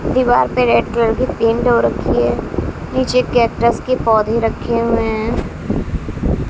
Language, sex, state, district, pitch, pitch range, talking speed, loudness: Hindi, female, Bihar, West Champaran, 230 Hz, 220-240 Hz, 150 wpm, -16 LUFS